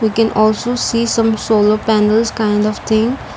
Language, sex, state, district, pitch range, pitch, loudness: English, female, Assam, Kamrup Metropolitan, 215-230 Hz, 220 Hz, -14 LUFS